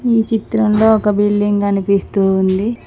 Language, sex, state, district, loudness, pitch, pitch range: Telugu, female, Telangana, Mahabubabad, -15 LUFS, 205 Hz, 200-220 Hz